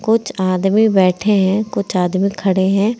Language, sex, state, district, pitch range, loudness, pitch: Hindi, female, Uttar Pradesh, Saharanpur, 190-215 Hz, -16 LUFS, 195 Hz